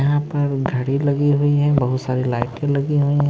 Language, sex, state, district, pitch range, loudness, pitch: Hindi, male, Maharashtra, Mumbai Suburban, 130-145 Hz, -19 LUFS, 140 Hz